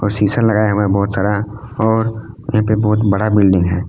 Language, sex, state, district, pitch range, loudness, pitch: Hindi, male, Jharkhand, Palamu, 100-110 Hz, -15 LUFS, 105 Hz